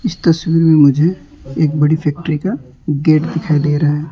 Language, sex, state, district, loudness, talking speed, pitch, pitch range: Hindi, male, West Bengal, Alipurduar, -14 LUFS, 190 wpm, 155 Hz, 150-165 Hz